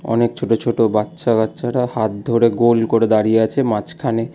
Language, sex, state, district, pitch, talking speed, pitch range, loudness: Bengali, male, West Bengal, Alipurduar, 115 Hz, 165 wpm, 110-120 Hz, -17 LUFS